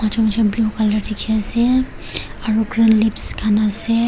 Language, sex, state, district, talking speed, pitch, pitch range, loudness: Nagamese, female, Nagaland, Kohima, 130 wpm, 220 Hz, 215-225 Hz, -16 LUFS